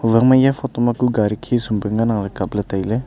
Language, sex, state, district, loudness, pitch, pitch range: Wancho, male, Arunachal Pradesh, Longding, -18 LUFS, 115 Hz, 105-120 Hz